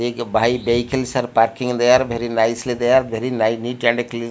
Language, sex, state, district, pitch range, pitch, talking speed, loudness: English, male, Odisha, Malkangiri, 115-125 Hz, 120 Hz, 180 wpm, -18 LUFS